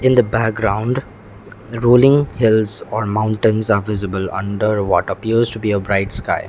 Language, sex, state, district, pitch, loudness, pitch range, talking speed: English, male, Sikkim, Gangtok, 110 Hz, -17 LUFS, 100-115 Hz, 155 wpm